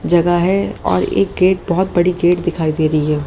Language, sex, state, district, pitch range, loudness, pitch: Hindi, female, Haryana, Jhajjar, 155-180 Hz, -15 LUFS, 175 Hz